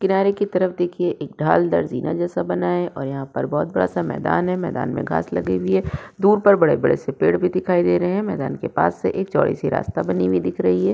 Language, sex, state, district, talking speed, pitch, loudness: Hindi, female, Uttar Pradesh, Budaun, 260 wpm, 135 Hz, -20 LUFS